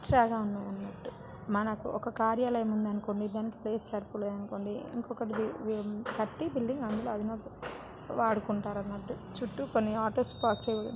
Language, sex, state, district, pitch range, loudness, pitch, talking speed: Telugu, female, Telangana, Nalgonda, 210-230 Hz, -33 LUFS, 220 Hz, 125 wpm